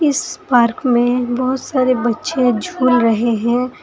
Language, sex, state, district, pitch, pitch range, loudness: Hindi, female, Uttar Pradesh, Saharanpur, 250 Hz, 240-260 Hz, -16 LUFS